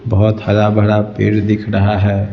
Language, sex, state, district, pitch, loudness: Hindi, male, Bihar, Patna, 105 Hz, -14 LUFS